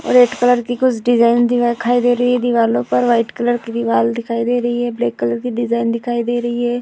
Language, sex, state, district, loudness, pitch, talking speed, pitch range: Hindi, female, Bihar, Vaishali, -16 LUFS, 240 Hz, 255 wpm, 230-245 Hz